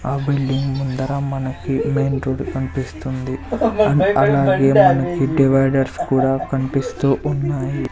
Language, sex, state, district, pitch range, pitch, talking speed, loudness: Telugu, male, Andhra Pradesh, Sri Satya Sai, 135-140 Hz, 135 Hz, 100 wpm, -18 LUFS